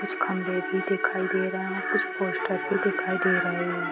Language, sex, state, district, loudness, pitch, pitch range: Hindi, female, Bihar, Saran, -26 LUFS, 190 Hz, 185-190 Hz